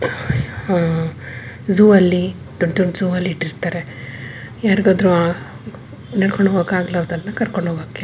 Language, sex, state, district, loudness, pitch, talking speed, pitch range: Kannada, female, Karnataka, Bellary, -18 LUFS, 175 Hz, 105 wpm, 165-195 Hz